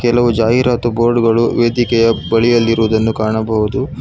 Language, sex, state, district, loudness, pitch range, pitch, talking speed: Kannada, male, Karnataka, Bangalore, -14 LUFS, 110-120 Hz, 115 Hz, 105 wpm